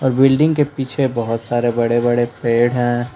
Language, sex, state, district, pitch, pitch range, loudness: Hindi, male, Jharkhand, Palamu, 120 Hz, 120-135 Hz, -17 LUFS